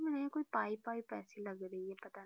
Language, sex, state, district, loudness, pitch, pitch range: Hindi, female, Bihar, Gopalganj, -42 LUFS, 215 Hz, 195-245 Hz